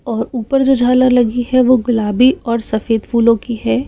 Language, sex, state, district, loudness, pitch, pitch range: Hindi, female, Chhattisgarh, Raipur, -14 LUFS, 235 Hz, 225-255 Hz